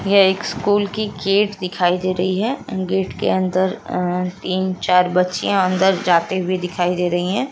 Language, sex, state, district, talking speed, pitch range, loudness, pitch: Hindi, female, Bihar, Lakhisarai, 190 wpm, 180-195 Hz, -19 LUFS, 185 Hz